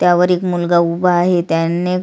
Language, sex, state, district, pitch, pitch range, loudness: Marathi, female, Maharashtra, Sindhudurg, 175 Hz, 170-180 Hz, -15 LUFS